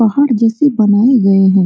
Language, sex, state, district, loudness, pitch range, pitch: Hindi, female, Bihar, Supaul, -11 LUFS, 195-255 Hz, 225 Hz